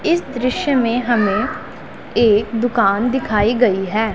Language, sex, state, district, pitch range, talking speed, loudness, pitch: Hindi, female, Punjab, Pathankot, 215-255 Hz, 130 wpm, -17 LUFS, 235 Hz